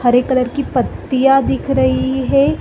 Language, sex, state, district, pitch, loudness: Hindi, female, Chhattisgarh, Bilaspur, 245 Hz, -15 LUFS